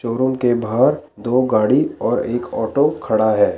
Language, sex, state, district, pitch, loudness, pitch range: Hindi, male, Chandigarh, Chandigarh, 120 Hz, -18 LUFS, 110-130 Hz